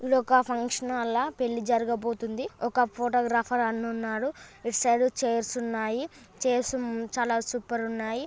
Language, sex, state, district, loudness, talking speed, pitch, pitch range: Telugu, female, Telangana, Nalgonda, -28 LUFS, 150 wpm, 240 Hz, 230-250 Hz